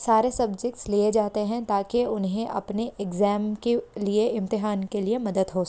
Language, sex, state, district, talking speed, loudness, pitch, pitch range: Hindi, female, Jharkhand, Sahebganj, 180 wpm, -26 LUFS, 210 Hz, 205-230 Hz